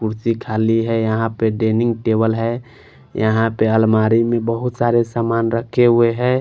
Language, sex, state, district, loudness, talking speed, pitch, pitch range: Hindi, male, Punjab, Fazilka, -17 LUFS, 170 wpm, 115 Hz, 110-120 Hz